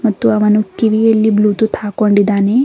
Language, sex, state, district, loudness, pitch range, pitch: Kannada, female, Karnataka, Bidar, -13 LUFS, 210-225 Hz, 215 Hz